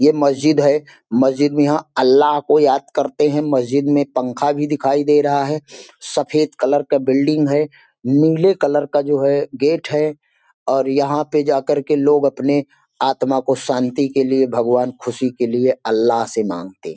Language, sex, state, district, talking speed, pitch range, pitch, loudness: Hindi, male, Bihar, Sitamarhi, 175 wpm, 130-150 Hz, 145 Hz, -17 LUFS